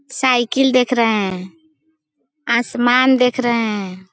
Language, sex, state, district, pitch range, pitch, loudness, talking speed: Hindi, female, Bihar, Sitamarhi, 230-265 Hz, 250 Hz, -16 LUFS, 115 wpm